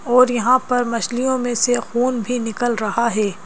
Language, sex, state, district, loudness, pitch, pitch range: Hindi, female, Madhya Pradesh, Bhopal, -19 LUFS, 240 Hz, 230-250 Hz